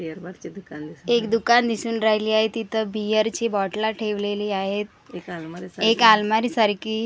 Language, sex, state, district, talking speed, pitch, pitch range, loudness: Marathi, female, Maharashtra, Gondia, 125 wpm, 215 Hz, 195-225 Hz, -21 LUFS